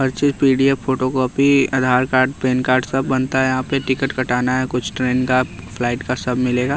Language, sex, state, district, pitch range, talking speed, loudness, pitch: Hindi, male, Bihar, West Champaran, 125-135 Hz, 220 wpm, -18 LUFS, 130 Hz